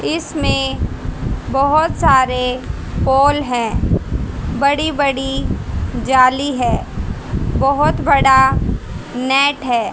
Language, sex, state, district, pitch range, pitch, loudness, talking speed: Hindi, female, Haryana, Jhajjar, 255-280 Hz, 270 Hz, -16 LUFS, 80 wpm